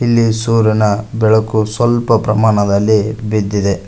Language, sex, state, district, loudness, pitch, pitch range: Kannada, male, Karnataka, Koppal, -13 LUFS, 110 Hz, 105-115 Hz